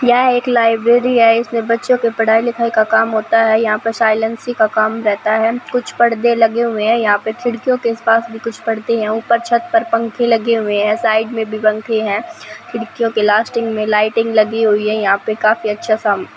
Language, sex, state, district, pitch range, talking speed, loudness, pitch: Hindi, female, Chhattisgarh, Raipur, 215-235 Hz, 225 wpm, -15 LUFS, 225 Hz